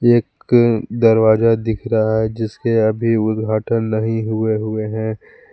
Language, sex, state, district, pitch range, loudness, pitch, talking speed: Hindi, male, Jharkhand, Palamu, 110-115 Hz, -17 LUFS, 110 Hz, 130 wpm